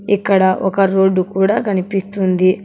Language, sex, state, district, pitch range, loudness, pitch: Telugu, male, Telangana, Hyderabad, 185-200 Hz, -15 LUFS, 190 Hz